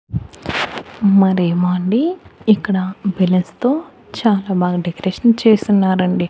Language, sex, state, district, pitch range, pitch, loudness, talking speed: Telugu, male, Andhra Pradesh, Annamaya, 180-220 Hz, 195 Hz, -16 LUFS, 85 wpm